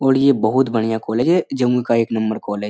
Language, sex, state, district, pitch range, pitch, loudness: Hindi, male, Bihar, Jamui, 110-135 Hz, 120 Hz, -18 LUFS